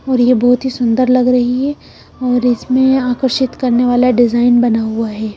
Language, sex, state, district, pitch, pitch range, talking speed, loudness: Hindi, female, Punjab, Kapurthala, 250 Hz, 240-255 Hz, 190 wpm, -13 LUFS